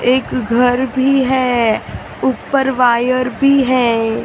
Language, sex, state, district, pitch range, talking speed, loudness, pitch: Hindi, female, Maharashtra, Mumbai Suburban, 245-265 Hz, 125 wpm, -14 LUFS, 255 Hz